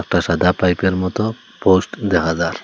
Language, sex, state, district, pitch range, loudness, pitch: Bengali, male, Assam, Hailakandi, 85-95 Hz, -17 LUFS, 90 Hz